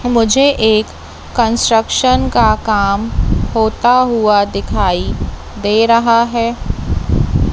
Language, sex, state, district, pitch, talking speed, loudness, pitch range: Hindi, female, Madhya Pradesh, Katni, 230 Hz, 90 wpm, -13 LUFS, 215-240 Hz